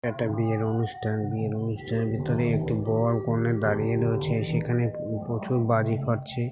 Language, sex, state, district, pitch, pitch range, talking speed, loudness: Bengali, male, West Bengal, North 24 Parganas, 115 Hz, 110-120 Hz, 145 wpm, -27 LUFS